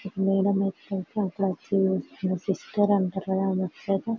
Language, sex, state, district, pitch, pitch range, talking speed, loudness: Telugu, female, Telangana, Karimnagar, 195 Hz, 190-200 Hz, 100 wpm, -26 LUFS